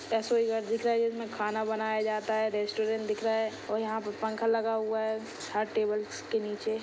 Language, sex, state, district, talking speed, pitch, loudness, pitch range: Hindi, female, Chhattisgarh, Sukma, 210 wpm, 220 Hz, -31 LUFS, 215-225 Hz